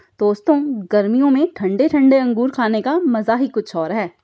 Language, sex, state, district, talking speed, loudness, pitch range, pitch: Hindi, female, Uttar Pradesh, Budaun, 170 wpm, -17 LUFS, 210-275 Hz, 235 Hz